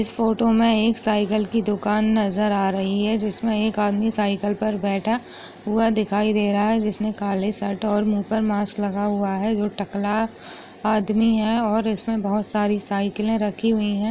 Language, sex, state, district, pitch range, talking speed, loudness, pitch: Hindi, female, Chhattisgarh, Sukma, 205-220 Hz, 185 wpm, -22 LUFS, 210 Hz